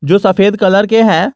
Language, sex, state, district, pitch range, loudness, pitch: Hindi, male, Jharkhand, Garhwa, 190-215 Hz, -10 LUFS, 200 Hz